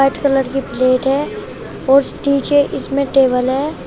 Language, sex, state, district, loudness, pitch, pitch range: Hindi, female, Uttar Pradesh, Shamli, -16 LUFS, 270 Hz, 265-280 Hz